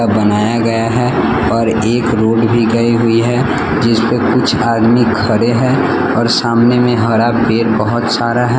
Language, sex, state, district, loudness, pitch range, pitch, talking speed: Hindi, male, Bihar, West Champaran, -12 LUFS, 115-120 Hz, 115 Hz, 165 wpm